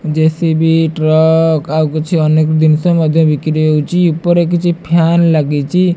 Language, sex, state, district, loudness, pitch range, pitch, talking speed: Odia, female, Odisha, Malkangiri, -12 LUFS, 155-170 Hz, 160 Hz, 120 wpm